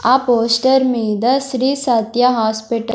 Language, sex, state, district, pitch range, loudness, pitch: Telugu, female, Andhra Pradesh, Sri Satya Sai, 230-260 Hz, -15 LUFS, 245 Hz